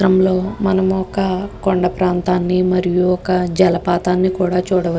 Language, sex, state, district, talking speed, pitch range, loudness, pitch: Telugu, female, Andhra Pradesh, Guntur, 155 wpm, 180-190 Hz, -16 LUFS, 185 Hz